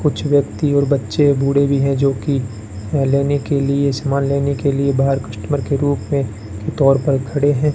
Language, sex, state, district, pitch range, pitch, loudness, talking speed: Hindi, male, Rajasthan, Bikaner, 135-140 Hz, 140 Hz, -17 LUFS, 210 wpm